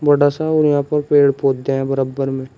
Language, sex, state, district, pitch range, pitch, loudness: Hindi, male, Uttar Pradesh, Shamli, 135-145 Hz, 140 Hz, -16 LUFS